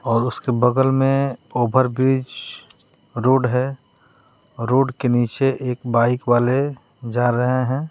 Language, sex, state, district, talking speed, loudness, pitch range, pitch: Hindi, male, Bihar, West Champaran, 130 wpm, -19 LUFS, 120-135 Hz, 130 Hz